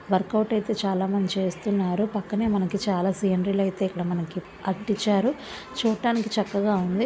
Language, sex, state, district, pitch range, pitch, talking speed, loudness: Telugu, female, Andhra Pradesh, Visakhapatnam, 190-215 Hz, 200 Hz, 145 wpm, -25 LUFS